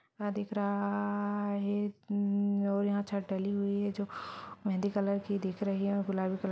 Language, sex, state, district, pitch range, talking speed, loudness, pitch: Hindi, female, Chhattisgarh, Balrampur, 200-205 Hz, 200 wpm, -33 LUFS, 200 Hz